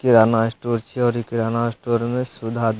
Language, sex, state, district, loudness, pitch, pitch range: Maithili, male, Bihar, Supaul, -21 LUFS, 115 Hz, 115-120 Hz